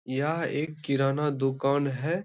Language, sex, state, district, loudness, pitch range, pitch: Hindi, male, Bihar, Bhagalpur, -28 LUFS, 135-155 Hz, 140 Hz